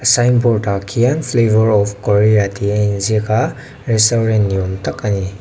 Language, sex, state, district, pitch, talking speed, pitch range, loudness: Mizo, male, Mizoram, Aizawl, 110 Hz, 165 wpm, 100-120 Hz, -15 LUFS